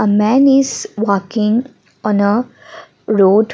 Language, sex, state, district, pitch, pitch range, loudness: English, female, Assam, Kamrup Metropolitan, 215 Hz, 205-240 Hz, -14 LUFS